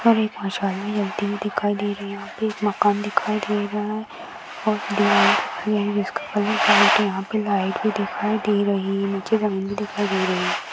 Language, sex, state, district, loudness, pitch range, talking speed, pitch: Hindi, female, Maharashtra, Aurangabad, -22 LUFS, 200-210 Hz, 210 wpm, 205 Hz